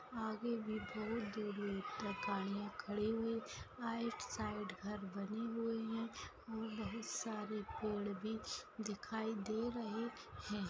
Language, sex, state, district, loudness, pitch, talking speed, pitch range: Hindi, female, Maharashtra, Pune, -44 LUFS, 215 Hz, 130 wpm, 210-225 Hz